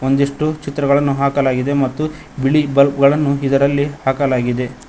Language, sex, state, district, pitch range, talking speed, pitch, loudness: Kannada, male, Karnataka, Koppal, 135-140 Hz, 110 wpm, 140 Hz, -16 LUFS